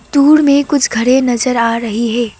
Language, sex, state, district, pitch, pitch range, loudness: Hindi, female, Assam, Kamrup Metropolitan, 250 Hz, 230-280 Hz, -12 LUFS